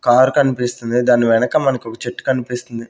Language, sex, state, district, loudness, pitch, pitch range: Telugu, male, Andhra Pradesh, Sri Satya Sai, -17 LUFS, 125 Hz, 115-125 Hz